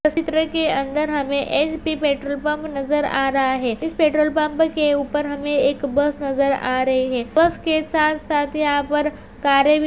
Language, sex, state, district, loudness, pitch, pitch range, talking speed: Hindi, female, Uttar Pradesh, Budaun, -20 LUFS, 295 Hz, 275-305 Hz, 175 wpm